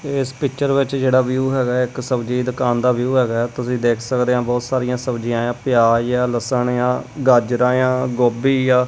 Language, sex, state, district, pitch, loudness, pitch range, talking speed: Punjabi, female, Punjab, Kapurthala, 125 Hz, -18 LUFS, 120-130 Hz, 190 wpm